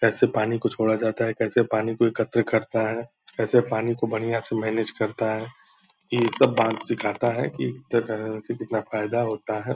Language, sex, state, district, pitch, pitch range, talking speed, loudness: Hindi, male, Bihar, Purnia, 115 Hz, 110-115 Hz, 190 wpm, -25 LUFS